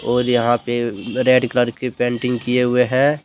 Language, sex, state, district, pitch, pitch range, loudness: Hindi, male, Jharkhand, Deoghar, 125 Hz, 120-125 Hz, -18 LUFS